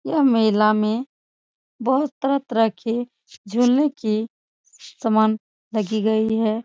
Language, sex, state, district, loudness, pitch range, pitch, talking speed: Hindi, female, Bihar, Supaul, -21 LUFS, 220-260 Hz, 225 Hz, 115 wpm